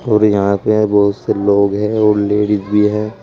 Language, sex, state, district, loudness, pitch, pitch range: Hindi, male, Uttar Pradesh, Saharanpur, -14 LUFS, 105 Hz, 100-105 Hz